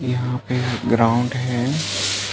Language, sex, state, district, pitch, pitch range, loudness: Hindi, male, Chhattisgarh, Balrampur, 125 Hz, 115-125 Hz, -21 LUFS